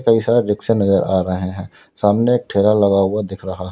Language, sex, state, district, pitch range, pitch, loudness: Hindi, male, Uttar Pradesh, Lalitpur, 95-110 Hz, 100 Hz, -17 LUFS